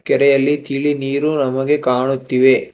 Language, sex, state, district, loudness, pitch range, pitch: Kannada, male, Karnataka, Bangalore, -16 LUFS, 130-145 Hz, 140 Hz